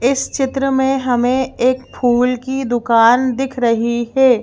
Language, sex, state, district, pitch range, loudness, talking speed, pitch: Hindi, female, Madhya Pradesh, Bhopal, 240-265 Hz, -16 LUFS, 150 wpm, 255 Hz